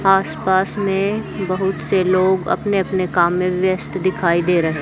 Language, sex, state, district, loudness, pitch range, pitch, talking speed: Hindi, female, Haryana, Charkhi Dadri, -18 LUFS, 180-195 Hz, 185 Hz, 160 wpm